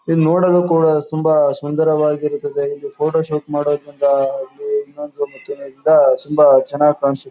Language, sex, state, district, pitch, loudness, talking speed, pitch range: Kannada, male, Karnataka, Chamarajanagar, 155 Hz, -16 LUFS, 130 wpm, 145-180 Hz